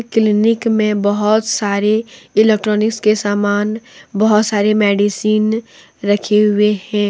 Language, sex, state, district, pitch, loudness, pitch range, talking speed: Hindi, female, Jharkhand, Deoghar, 210 Hz, -15 LUFS, 205-220 Hz, 110 wpm